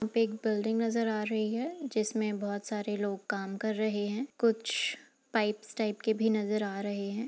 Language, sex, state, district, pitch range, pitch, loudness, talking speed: Hindi, female, Uttar Pradesh, Jalaun, 210-225 Hz, 215 Hz, -32 LUFS, 205 wpm